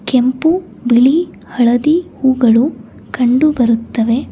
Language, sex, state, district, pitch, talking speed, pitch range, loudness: Kannada, female, Karnataka, Bangalore, 250 Hz, 85 wpm, 235-290 Hz, -13 LUFS